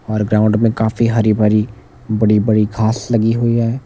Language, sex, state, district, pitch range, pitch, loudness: Hindi, male, Himachal Pradesh, Shimla, 105-115 Hz, 110 Hz, -15 LUFS